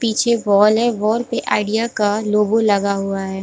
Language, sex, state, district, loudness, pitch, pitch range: Hindi, female, Bihar, Supaul, -17 LUFS, 210 Hz, 205-225 Hz